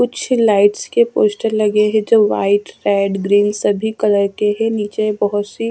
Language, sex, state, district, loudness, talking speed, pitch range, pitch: Hindi, female, Chhattisgarh, Raipur, -15 LUFS, 190 wpm, 205-225 Hz, 210 Hz